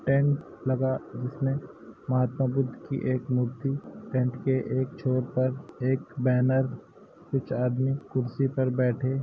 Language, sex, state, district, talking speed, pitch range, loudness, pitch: Hindi, male, Uttar Pradesh, Hamirpur, 130 wpm, 130-135 Hz, -28 LUFS, 130 Hz